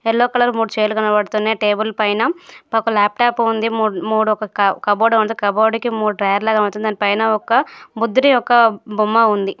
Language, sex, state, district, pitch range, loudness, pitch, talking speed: Telugu, female, Andhra Pradesh, Guntur, 210-230 Hz, -16 LUFS, 220 Hz, 160 wpm